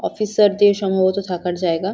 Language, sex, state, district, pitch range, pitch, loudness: Bengali, female, West Bengal, Jhargram, 180-205 Hz, 195 Hz, -18 LUFS